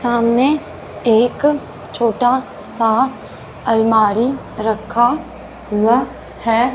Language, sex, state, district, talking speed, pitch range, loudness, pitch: Hindi, female, Punjab, Fazilka, 70 wpm, 225-260 Hz, -16 LUFS, 240 Hz